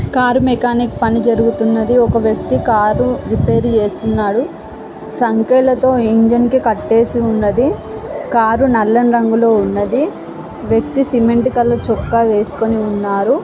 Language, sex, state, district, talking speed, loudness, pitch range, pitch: Telugu, female, Andhra Pradesh, Guntur, 115 wpm, -14 LUFS, 220-245 Hz, 230 Hz